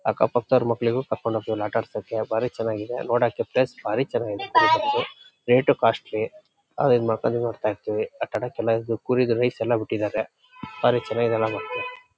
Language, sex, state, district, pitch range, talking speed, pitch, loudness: Kannada, male, Karnataka, Shimoga, 110-130 Hz, 125 wpm, 120 Hz, -24 LUFS